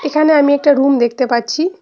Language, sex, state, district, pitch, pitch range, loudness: Bengali, female, West Bengal, Cooch Behar, 285 Hz, 255-305 Hz, -13 LUFS